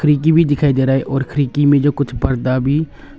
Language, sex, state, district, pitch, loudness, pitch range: Hindi, male, Arunachal Pradesh, Longding, 140 Hz, -15 LUFS, 135-145 Hz